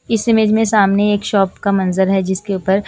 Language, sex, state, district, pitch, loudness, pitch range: Hindi, female, Punjab, Kapurthala, 200 Hz, -15 LUFS, 195-215 Hz